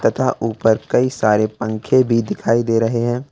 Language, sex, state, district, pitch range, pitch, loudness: Hindi, male, Jharkhand, Ranchi, 110-120 Hz, 115 Hz, -17 LUFS